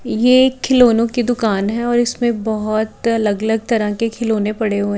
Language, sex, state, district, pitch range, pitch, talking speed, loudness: Hindi, female, Haryana, Rohtak, 215-240 Hz, 225 Hz, 195 wpm, -16 LUFS